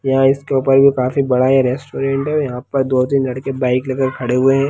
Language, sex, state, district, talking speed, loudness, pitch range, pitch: Hindi, male, Bihar, Lakhisarai, 230 wpm, -16 LUFS, 130-135 Hz, 135 Hz